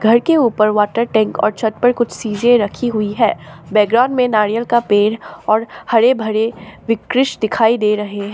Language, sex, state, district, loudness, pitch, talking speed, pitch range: Hindi, female, Assam, Sonitpur, -15 LUFS, 220 Hz, 185 wpm, 210-240 Hz